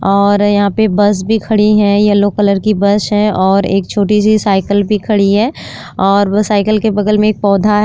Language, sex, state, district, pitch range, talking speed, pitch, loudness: Hindi, female, Uttar Pradesh, Jyotiba Phule Nagar, 200-210 Hz, 215 wpm, 205 Hz, -11 LUFS